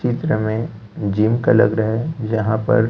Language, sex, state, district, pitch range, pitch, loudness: Hindi, male, Chhattisgarh, Raipur, 110-120 Hz, 110 Hz, -18 LUFS